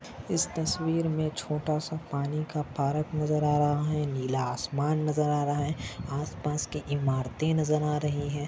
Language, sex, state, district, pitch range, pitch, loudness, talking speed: Hindi, male, Maharashtra, Nagpur, 145-155 Hz, 150 Hz, -29 LUFS, 175 wpm